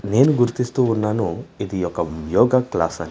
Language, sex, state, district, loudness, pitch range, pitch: Telugu, male, Andhra Pradesh, Manyam, -20 LUFS, 95-125 Hz, 115 Hz